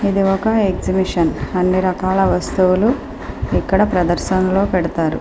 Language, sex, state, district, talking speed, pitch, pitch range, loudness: Telugu, female, Andhra Pradesh, Srikakulam, 105 wpm, 185 Hz, 180-195 Hz, -17 LUFS